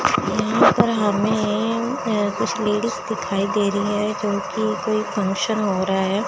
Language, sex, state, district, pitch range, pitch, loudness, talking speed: Hindi, female, Chandigarh, Chandigarh, 200-215 Hz, 210 Hz, -21 LUFS, 155 wpm